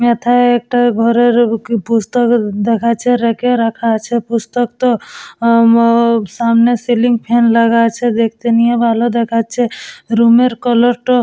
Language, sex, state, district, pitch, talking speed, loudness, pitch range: Bengali, female, West Bengal, Dakshin Dinajpur, 235 Hz, 130 wpm, -13 LUFS, 230-240 Hz